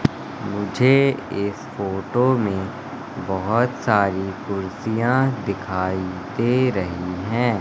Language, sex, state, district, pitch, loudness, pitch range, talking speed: Hindi, male, Madhya Pradesh, Katni, 100 Hz, -22 LUFS, 95-125 Hz, 85 wpm